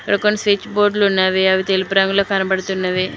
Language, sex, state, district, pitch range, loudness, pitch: Telugu, female, Telangana, Mahabubabad, 190-200 Hz, -16 LUFS, 195 Hz